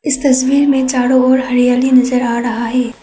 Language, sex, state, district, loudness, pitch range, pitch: Hindi, female, Assam, Kamrup Metropolitan, -13 LUFS, 245-260 Hz, 255 Hz